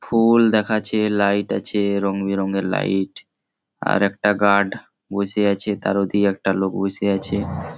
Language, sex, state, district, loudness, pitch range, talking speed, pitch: Bengali, male, West Bengal, Malda, -20 LUFS, 95-105 Hz, 140 wpm, 100 Hz